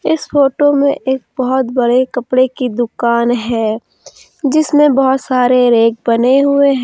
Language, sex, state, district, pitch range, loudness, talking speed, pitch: Hindi, female, Jharkhand, Deoghar, 240-280 Hz, -13 LUFS, 150 wpm, 255 Hz